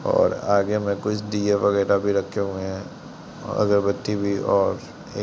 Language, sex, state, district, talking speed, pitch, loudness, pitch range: Hindi, male, Bihar, Jamui, 170 wpm, 100 Hz, -22 LUFS, 100-105 Hz